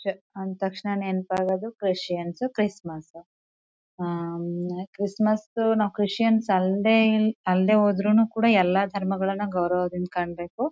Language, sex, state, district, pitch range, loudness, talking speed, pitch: Kannada, female, Karnataka, Chamarajanagar, 180-215 Hz, -24 LUFS, 100 wpm, 195 Hz